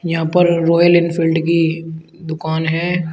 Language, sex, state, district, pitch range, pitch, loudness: Hindi, male, Uttar Pradesh, Shamli, 160-170 Hz, 165 Hz, -15 LUFS